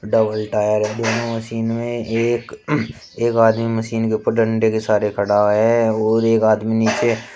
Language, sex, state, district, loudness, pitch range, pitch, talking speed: Hindi, male, Uttar Pradesh, Shamli, -18 LUFS, 110-115 Hz, 110 Hz, 170 wpm